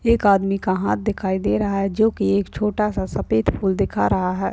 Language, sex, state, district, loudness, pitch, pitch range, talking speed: Hindi, female, Bihar, Purnia, -20 LUFS, 195 Hz, 190-210 Hz, 240 wpm